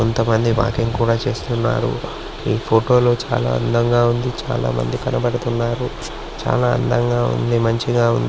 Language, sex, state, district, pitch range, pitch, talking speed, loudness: Telugu, male, Andhra Pradesh, Srikakulam, 110-120 Hz, 115 Hz, 130 wpm, -19 LUFS